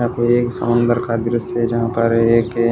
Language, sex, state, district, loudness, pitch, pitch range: Hindi, male, Odisha, Malkangiri, -17 LUFS, 120 Hz, 115-120 Hz